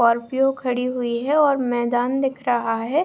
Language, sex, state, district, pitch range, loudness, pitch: Hindi, female, Bihar, Saharsa, 240-270 Hz, -21 LUFS, 250 Hz